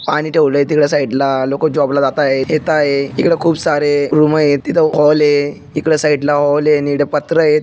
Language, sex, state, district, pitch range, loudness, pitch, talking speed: Marathi, male, Maharashtra, Dhule, 145-150 Hz, -14 LUFS, 145 Hz, 220 wpm